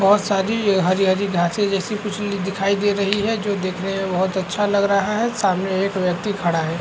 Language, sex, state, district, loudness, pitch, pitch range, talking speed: Hindi, male, Chhattisgarh, Korba, -20 LUFS, 195 Hz, 190-205 Hz, 220 wpm